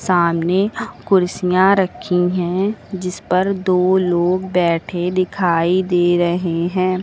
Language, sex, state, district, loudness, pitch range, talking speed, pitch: Hindi, female, Uttar Pradesh, Lucknow, -17 LUFS, 175-185 Hz, 110 wpm, 180 Hz